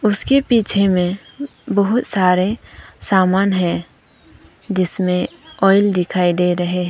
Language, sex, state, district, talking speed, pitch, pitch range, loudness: Hindi, female, Arunachal Pradesh, Papum Pare, 115 wpm, 190 Hz, 180-205 Hz, -17 LUFS